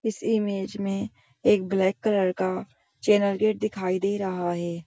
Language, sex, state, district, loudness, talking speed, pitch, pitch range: Hindi, female, Bihar, Begusarai, -25 LUFS, 160 wpm, 195 Hz, 185-210 Hz